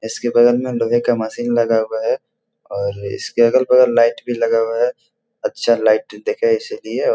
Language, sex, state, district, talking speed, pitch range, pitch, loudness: Hindi, male, Bihar, Jahanabad, 185 wpm, 115-125 Hz, 120 Hz, -17 LUFS